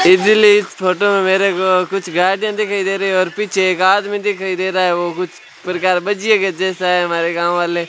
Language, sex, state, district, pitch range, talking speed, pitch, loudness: Hindi, male, Rajasthan, Bikaner, 180-205 Hz, 235 wpm, 190 Hz, -15 LUFS